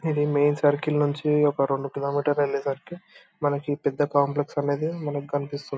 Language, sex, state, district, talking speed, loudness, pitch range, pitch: Telugu, male, Andhra Pradesh, Anantapur, 155 wpm, -25 LUFS, 140-150 Hz, 145 Hz